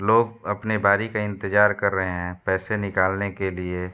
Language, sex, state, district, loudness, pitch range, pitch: Hindi, male, Uttar Pradesh, Hamirpur, -23 LUFS, 95-105 Hz, 100 Hz